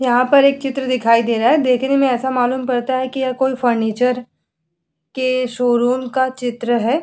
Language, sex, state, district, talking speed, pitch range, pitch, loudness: Hindi, female, Bihar, Vaishali, 205 wpm, 240-260 Hz, 250 Hz, -17 LUFS